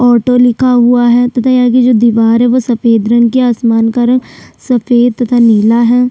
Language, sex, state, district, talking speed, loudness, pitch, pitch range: Hindi, female, Chhattisgarh, Sukma, 215 wpm, -9 LUFS, 245 Hz, 235-245 Hz